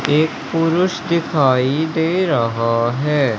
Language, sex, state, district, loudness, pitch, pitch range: Hindi, male, Madhya Pradesh, Umaria, -17 LUFS, 150 Hz, 130-165 Hz